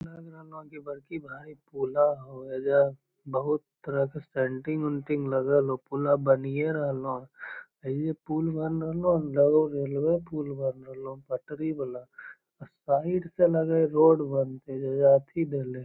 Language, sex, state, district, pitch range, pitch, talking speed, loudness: Magahi, male, Bihar, Lakhisarai, 135-155 Hz, 145 Hz, 180 wpm, -27 LUFS